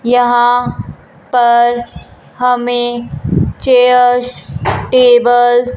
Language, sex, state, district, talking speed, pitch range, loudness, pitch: Hindi, female, Punjab, Fazilka, 60 wpm, 240-245 Hz, -11 LUFS, 245 Hz